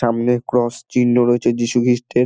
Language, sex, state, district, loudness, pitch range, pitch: Bengali, male, West Bengal, Dakshin Dinajpur, -17 LUFS, 120-125 Hz, 120 Hz